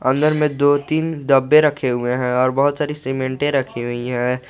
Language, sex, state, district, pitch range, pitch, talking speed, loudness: Hindi, male, Jharkhand, Garhwa, 125-150 Hz, 135 Hz, 200 wpm, -18 LUFS